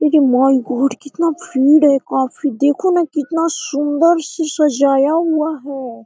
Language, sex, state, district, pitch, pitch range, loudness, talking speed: Hindi, female, Jharkhand, Sahebganj, 290 Hz, 270-320 Hz, -15 LUFS, 150 wpm